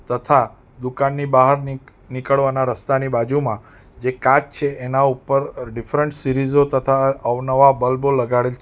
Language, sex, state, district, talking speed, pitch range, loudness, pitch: Gujarati, male, Gujarat, Valsad, 130 wpm, 125-140 Hz, -18 LUFS, 135 Hz